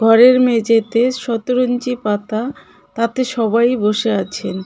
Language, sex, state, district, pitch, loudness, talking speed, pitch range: Bengali, female, West Bengal, Cooch Behar, 230 Hz, -16 LUFS, 105 wpm, 220-250 Hz